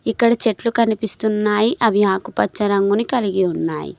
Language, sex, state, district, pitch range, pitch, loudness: Telugu, female, Telangana, Mahabubabad, 200-230 Hz, 215 Hz, -18 LUFS